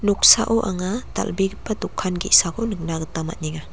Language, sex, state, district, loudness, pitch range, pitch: Garo, female, Meghalaya, West Garo Hills, -20 LUFS, 165-215 Hz, 190 Hz